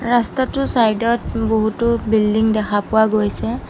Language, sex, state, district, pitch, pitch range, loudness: Assamese, female, Assam, Sonitpur, 220 Hz, 215-235 Hz, -17 LUFS